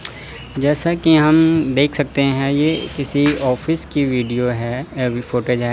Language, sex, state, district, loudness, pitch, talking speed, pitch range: Hindi, male, Chandigarh, Chandigarh, -17 LUFS, 140 Hz, 165 wpm, 125-150 Hz